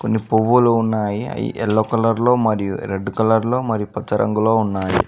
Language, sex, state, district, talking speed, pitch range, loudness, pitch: Telugu, male, Telangana, Mahabubabad, 165 wpm, 105-115 Hz, -18 LUFS, 110 Hz